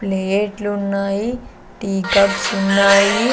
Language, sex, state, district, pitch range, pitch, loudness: Telugu, female, Andhra Pradesh, Sri Satya Sai, 195-205 Hz, 200 Hz, -17 LUFS